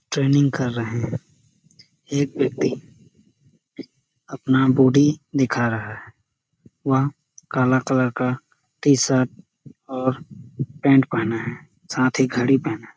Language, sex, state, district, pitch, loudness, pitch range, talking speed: Hindi, male, Chhattisgarh, Sarguja, 130 Hz, -21 LUFS, 125-140 Hz, 115 wpm